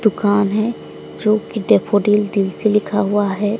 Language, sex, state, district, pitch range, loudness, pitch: Hindi, female, Odisha, Sambalpur, 205-215 Hz, -17 LUFS, 210 Hz